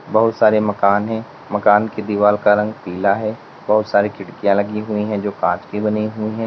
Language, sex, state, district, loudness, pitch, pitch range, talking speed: Hindi, male, Uttar Pradesh, Lalitpur, -18 LUFS, 105 Hz, 100-110 Hz, 215 wpm